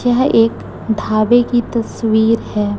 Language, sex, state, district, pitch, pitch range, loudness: Hindi, female, Chhattisgarh, Raipur, 225 Hz, 215-240 Hz, -15 LUFS